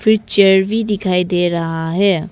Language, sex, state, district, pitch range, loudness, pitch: Hindi, female, Arunachal Pradesh, Papum Pare, 175-205 Hz, -15 LUFS, 190 Hz